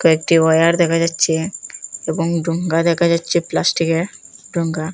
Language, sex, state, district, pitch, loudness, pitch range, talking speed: Bengali, female, Assam, Hailakandi, 165 Hz, -17 LUFS, 165-170 Hz, 120 wpm